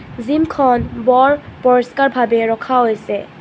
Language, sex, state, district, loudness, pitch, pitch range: Assamese, female, Assam, Kamrup Metropolitan, -15 LUFS, 250 Hz, 235-270 Hz